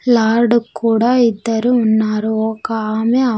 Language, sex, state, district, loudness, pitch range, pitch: Telugu, female, Andhra Pradesh, Sri Satya Sai, -15 LUFS, 220-235 Hz, 225 Hz